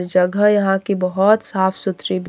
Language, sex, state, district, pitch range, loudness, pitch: Hindi, female, Jharkhand, Deoghar, 185-205 Hz, -17 LUFS, 190 Hz